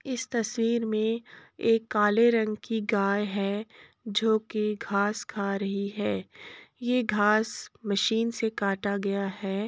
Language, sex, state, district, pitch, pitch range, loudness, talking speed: Hindi, female, Uttar Pradesh, Jalaun, 210 Hz, 200-225 Hz, -28 LUFS, 130 wpm